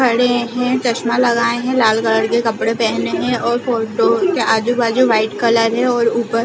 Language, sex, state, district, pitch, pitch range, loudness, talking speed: Hindi, female, Chhattisgarh, Balrampur, 235 Hz, 225-245 Hz, -16 LUFS, 225 wpm